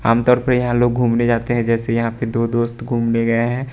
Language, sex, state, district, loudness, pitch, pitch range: Hindi, male, Bihar, West Champaran, -18 LUFS, 120 Hz, 115-120 Hz